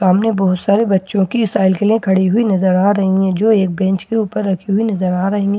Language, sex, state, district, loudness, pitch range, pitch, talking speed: Hindi, female, Bihar, Katihar, -15 LUFS, 190-210 Hz, 195 Hz, 225 wpm